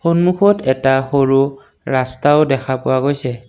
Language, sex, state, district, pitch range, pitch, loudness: Assamese, male, Assam, Kamrup Metropolitan, 130-145 Hz, 135 Hz, -15 LUFS